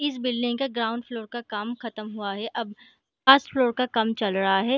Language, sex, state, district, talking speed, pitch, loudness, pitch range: Hindi, female, Jharkhand, Sahebganj, 225 wpm, 235 Hz, -25 LUFS, 215-250 Hz